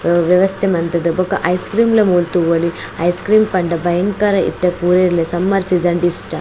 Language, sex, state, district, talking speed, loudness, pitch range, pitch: Tulu, female, Karnataka, Dakshina Kannada, 180 wpm, -15 LUFS, 175-190 Hz, 180 Hz